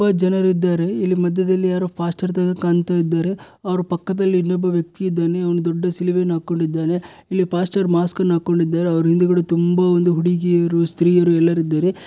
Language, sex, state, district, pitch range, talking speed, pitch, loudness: Kannada, male, Karnataka, Bellary, 170-185 Hz, 165 wpm, 175 Hz, -18 LUFS